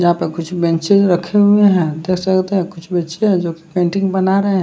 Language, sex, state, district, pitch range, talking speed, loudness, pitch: Hindi, male, Bihar, West Champaran, 170-195 Hz, 220 wpm, -15 LUFS, 180 Hz